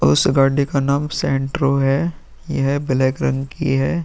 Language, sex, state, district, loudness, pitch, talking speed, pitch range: Hindi, male, Bihar, Vaishali, -19 LUFS, 135 Hz, 165 wpm, 135-145 Hz